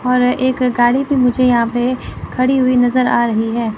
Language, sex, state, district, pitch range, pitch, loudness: Hindi, female, Chandigarh, Chandigarh, 240-255 Hz, 250 Hz, -15 LUFS